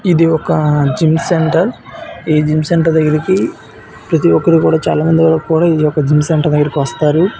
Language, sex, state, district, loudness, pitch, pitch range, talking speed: Telugu, male, Andhra Pradesh, Visakhapatnam, -12 LUFS, 160 Hz, 150-165 Hz, 155 wpm